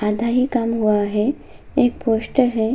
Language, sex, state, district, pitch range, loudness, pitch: Hindi, female, Bihar, Bhagalpur, 215-245 Hz, -19 LUFS, 230 Hz